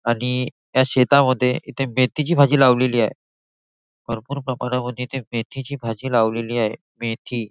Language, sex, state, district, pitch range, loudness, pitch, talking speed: Marathi, male, Maharashtra, Nagpur, 115-135 Hz, -20 LUFS, 125 Hz, 160 wpm